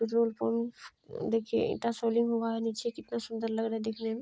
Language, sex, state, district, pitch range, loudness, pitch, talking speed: Hindi, female, Bihar, Lakhisarai, 225-235 Hz, -32 LUFS, 230 Hz, 215 wpm